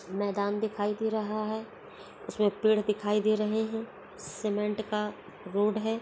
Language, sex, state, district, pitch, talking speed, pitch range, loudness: Hindi, female, Uttar Pradesh, Etah, 210 Hz, 150 wpm, 205-215 Hz, -30 LUFS